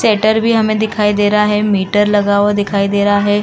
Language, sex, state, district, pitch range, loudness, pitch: Hindi, female, Uttar Pradesh, Muzaffarnagar, 205-215 Hz, -13 LUFS, 205 Hz